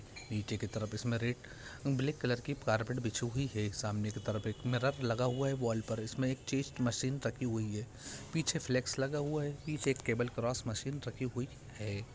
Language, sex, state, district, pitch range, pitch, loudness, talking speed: Hindi, male, Bihar, Purnia, 110-135 Hz, 125 Hz, -37 LUFS, 215 wpm